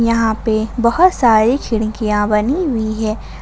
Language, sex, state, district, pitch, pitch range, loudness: Hindi, female, Jharkhand, Ranchi, 225 Hz, 215-240 Hz, -15 LUFS